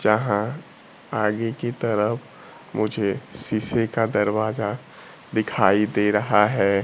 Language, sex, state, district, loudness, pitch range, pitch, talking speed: Hindi, male, Bihar, Kaimur, -23 LUFS, 105-115 Hz, 110 Hz, 105 wpm